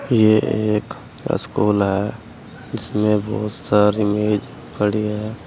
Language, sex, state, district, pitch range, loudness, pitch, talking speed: Hindi, male, Uttar Pradesh, Saharanpur, 105-110 Hz, -19 LUFS, 105 Hz, 110 wpm